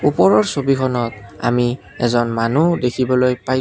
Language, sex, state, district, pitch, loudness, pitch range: Assamese, male, Assam, Kamrup Metropolitan, 125 Hz, -17 LUFS, 120-130 Hz